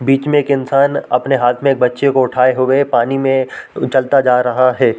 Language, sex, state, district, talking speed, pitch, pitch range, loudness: Hindi, male, Chhattisgarh, Korba, 215 wpm, 130 Hz, 125-135 Hz, -14 LUFS